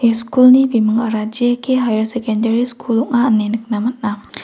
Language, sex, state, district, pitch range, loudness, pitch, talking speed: Garo, female, Meghalaya, West Garo Hills, 220-245 Hz, -15 LUFS, 230 Hz, 150 wpm